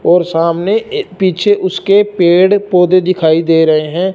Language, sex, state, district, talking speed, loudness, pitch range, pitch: Hindi, male, Punjab, Fazilka, 160 wpm, -11 LUFS, 170-200 Hz, 185 Hz